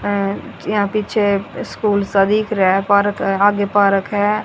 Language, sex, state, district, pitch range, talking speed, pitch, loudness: Hindi, female, Haryana, Rohtak, 195-205 Hz, 160 wpm, 205 Hz, -17 LUFS